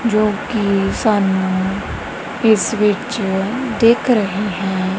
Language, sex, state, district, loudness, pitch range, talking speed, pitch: Punjabi, female, Punjab, Kapurthala, -17 LUFS, 195-225 Hz, 95 wpm, 210 Hz